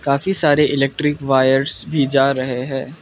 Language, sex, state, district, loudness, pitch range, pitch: Hindi, male, Arunachal Pradesh, Lower Dibang Valley, -17 LUFS, 135-145 Hz, 140 Hz